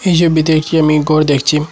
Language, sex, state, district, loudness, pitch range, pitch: Bengali, male, Assam, Hailakandi, -12 LUFS, 150-165 Hz, 155 Hz